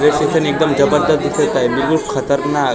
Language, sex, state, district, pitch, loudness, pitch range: Marathi, male, Maharashtra, Gondia, 150 Hz, -15 LUFS, 140-155 Hz